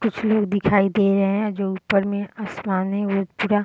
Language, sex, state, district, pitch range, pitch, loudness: Hindi, female, Bihar, Sitamarhi, 195-205 Hz, 200 Hz, -21 LUFS